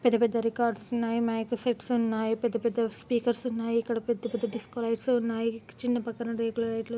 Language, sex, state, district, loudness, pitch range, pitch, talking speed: Telugu, female, Andhra Pradesh, Guntur, -29 LUFS, 230-240 Hz, 235 Hz, 205 wpm